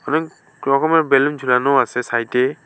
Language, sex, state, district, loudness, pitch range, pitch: Bengali, male, West Bengal, Alipurduar, -17 LUFS, 125-150 Hz, 135 Hz